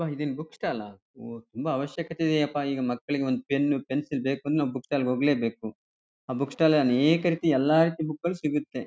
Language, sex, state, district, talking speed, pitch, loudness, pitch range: Kannada, male, Karnataka, Chamarajanagar, 215 wpm, 145 Hz, -27 LUFS, 130-155 Hz